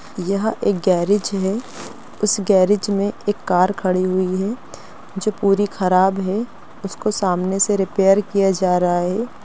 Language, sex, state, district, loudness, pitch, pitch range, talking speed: Hindi, female, Bihar, East Champaran, -19 LUFS, 195 Hz, 185-205 Hz, 150 wpm